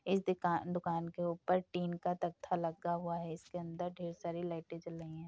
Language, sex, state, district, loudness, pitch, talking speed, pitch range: Hindi, female, Uttar Pradesh, Deoria, -39 LUFS, 170 Hz, 215 wpm, 170-180 Hz